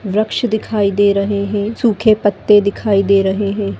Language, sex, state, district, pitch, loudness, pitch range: Hindi, female, Goa, North and South Goa, 205 Hz, -15 LUFS, 200-215 Hz